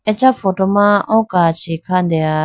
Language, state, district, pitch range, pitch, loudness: Idu Mishmi, Arunachal Pradesh, Lower Dibang Valley, 165-215 Hz, 190 Hz, -15 LUFS